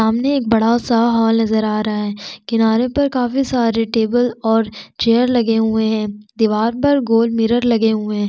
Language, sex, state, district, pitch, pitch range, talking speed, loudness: Hindi, female, Chhattisgarh, Sukma, 225 Hz, 220-240 Hz, 190 wpm, -16 LUFS